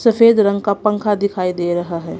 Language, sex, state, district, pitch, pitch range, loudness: Hindi, female, Punjab, Kapurthala, 200 Hz, 180-210 Hz, -16 LUFS